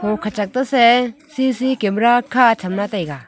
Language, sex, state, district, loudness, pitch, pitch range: Wancho, female, Arunachal Pradesh, Longding, -17 LUFS, 235 Hz, 205-255 Hz